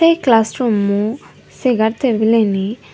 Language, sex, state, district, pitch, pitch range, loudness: Chakma, female, Tripura, Dhalai, 225 Hz, 210-250 Hz, -16 LUFS